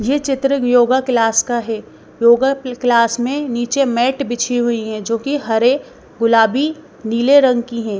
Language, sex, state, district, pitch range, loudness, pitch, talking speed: Hindi, female, Bihar, Patna, 230-270 Hz, -16 LUFS, 240 Hz, 175 wpm